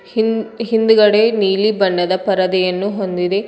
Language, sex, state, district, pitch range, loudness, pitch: Kannada, female, Karnataka, Koppal, 185-220 Hz, -15 LUFS, 200 Hz